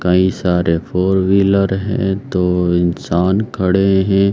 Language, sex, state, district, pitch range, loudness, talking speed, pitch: Hindi, male, Bihar, Saran, 90-95 Hz, -15 LUFS, 125 wpm, 95 Hz